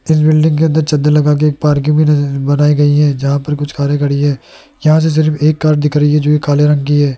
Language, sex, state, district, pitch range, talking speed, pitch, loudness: Hindi, male, Rajasthan, Jaipur, 145-155 Hz, 275 wpm, 150 Hz, -12 LUFS